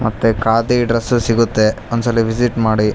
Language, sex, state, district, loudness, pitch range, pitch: Kannada, male, Karnataka, Raichur, -16 LUFS, 110-120 Hz, 115 Hz